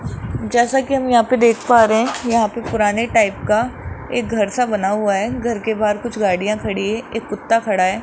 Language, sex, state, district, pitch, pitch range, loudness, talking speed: Hindi, male, Rajasthan, Jaipur, 220 Hz, 205-235 Hz, -18 LUFS, 230 wpm